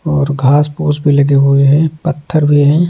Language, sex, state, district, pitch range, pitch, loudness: Hindi, male, Bihar, Kaimur, 140-155 Hz, 145 Hz, -11 LUFS